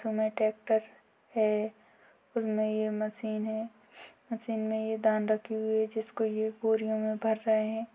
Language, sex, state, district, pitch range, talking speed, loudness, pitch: Hindi, female, Uttar Pradesh, Ghazipur, 215-220 Hz, 150 wpm, -31 LUFS, 220 Hz